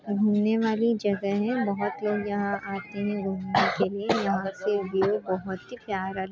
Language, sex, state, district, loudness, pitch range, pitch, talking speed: Hindi, female, Bihar, Muzaffarpur, -27 LUFS, 195-210 Hz, 200 Hz, 170 wpm